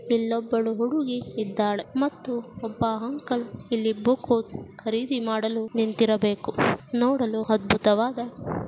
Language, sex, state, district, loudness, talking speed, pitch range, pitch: Kannada, female, Karnataka, Dakshina Kannada, -25 LUFS, 90 wpm, 220-245 Hz, 230 Hz